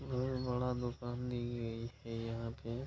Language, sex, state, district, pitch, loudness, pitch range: Hindi, male, Bihar, Kishanganj, 120 Hz, -40 LUFS, 115-125 Hz